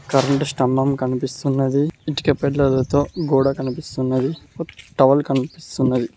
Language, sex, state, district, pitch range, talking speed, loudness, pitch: Telugu, male, Telangana, Mahabubabad, 130-145 Hz, 85 wpm, -20 LUFS, 135 Hz